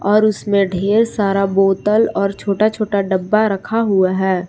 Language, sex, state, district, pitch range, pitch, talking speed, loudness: Hindi, female, Jharkhand, Palamu, 195-215 Hz, 200 Hz, 160 wpm, -16 LUFS